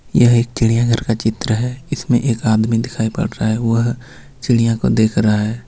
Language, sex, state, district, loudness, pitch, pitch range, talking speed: Hindi, male, Jharkhand, Ranchi, -16 LUFS, 115 Hz, 110-125 Hz, 200 wpm